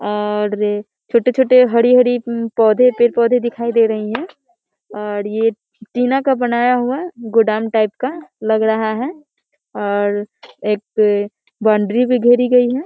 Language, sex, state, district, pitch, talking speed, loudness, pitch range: Hindi, female, Bihar, Muzaffarpur, 235 Hz, 145 wpm, -16 LUFS, 215-250 Hz